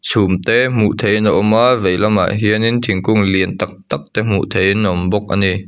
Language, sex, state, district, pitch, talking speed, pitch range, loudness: Mizo, male, Mizoram, Aizawl, 105 Hz, 240 wpm, 95-110 Hz, -15 LUFS